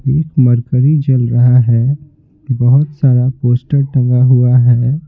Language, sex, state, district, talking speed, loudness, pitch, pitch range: Hindi, male, Bihar, Patna, 130 wpm, -12 LUFS, 130 Hz, 125-145 Hz